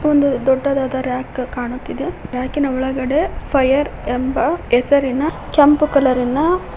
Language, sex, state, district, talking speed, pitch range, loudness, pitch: Kannada, female, Karnataka, Koppal, 115 wpm, 255-290 Hz, -17 LUFS, 270 Hz